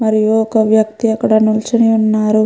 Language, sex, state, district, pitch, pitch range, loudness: Telugu, female, Andhra Pradesh, Krishna, 220 Hz, 215-220 Hz, -13 LUFS